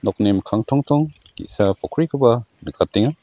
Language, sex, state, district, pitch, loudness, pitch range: Garo, male, Meghalaya, West Garo Hills, 110 Hz, -20 LUFS, 100-140 Hz